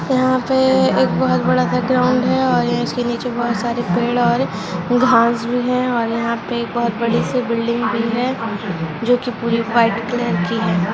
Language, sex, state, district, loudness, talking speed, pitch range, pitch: Hindi, female, Jharkhand, Jamtara, -17 LUFS, 185 wpm, 220-245 Hz, 235 Hz